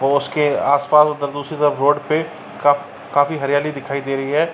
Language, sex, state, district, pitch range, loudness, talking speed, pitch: Hindi, male, Uttar Pradesh, Jalaun, 140-150 Hz, -18 LUFS, 200 wpm, 145 Hz